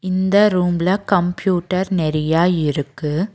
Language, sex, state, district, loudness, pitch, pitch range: Tamil, female, Tamil Nadu, Nilgiris, -18 LUFS, 180 Hz, 160-190 Hz